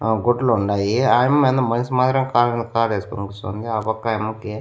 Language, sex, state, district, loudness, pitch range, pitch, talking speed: Telugu, male, Andhra Pradesh, Annamaya, -20 LUFS, 110-120 Hz, 115 Hz, 180 wpm